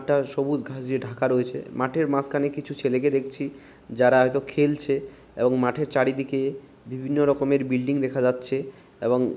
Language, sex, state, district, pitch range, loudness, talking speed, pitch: Bengali, male, West Bengal, Malda, 130-140 Hz, -24 LUFS, 145 wpm, 135 Hz